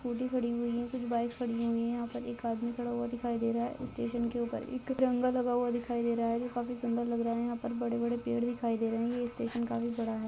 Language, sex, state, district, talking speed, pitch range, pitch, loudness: Hindi, female, Rajasthan, Nagaur, 290 wpm, 235-240 Hz, 235 Hz, -33 LUFS